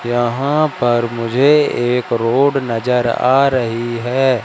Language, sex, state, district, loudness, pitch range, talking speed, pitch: Hindi, male, Madhya Pradesh, Katni, -15 LUFS, 120-135 Hz, 120 wpm, 120 Hz